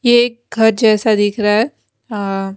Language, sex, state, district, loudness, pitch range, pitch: Hindi, female, Bihar, West Champaran, -15 LUFS, 205-235 Hz, 220 Hz